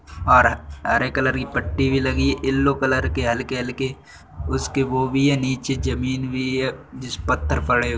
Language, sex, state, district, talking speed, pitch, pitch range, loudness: Bundeli, male, Uttar Pradesh, Budaun, 180 wpm, 130 Hz, 125-135 Hz, -21 LUFS